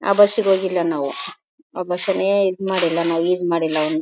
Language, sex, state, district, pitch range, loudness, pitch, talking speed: Kannada, female, Karnataka, Bellary, 170-200 Hz, -19 LUFS, 185 Hz, 195 wpm